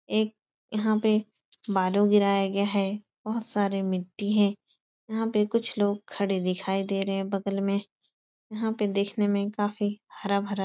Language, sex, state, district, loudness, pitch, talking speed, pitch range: Hindi, female, Uttar Pradesh, Etah, -27 LUFS, 205 Hz, 170 wpm, 195-215 Hz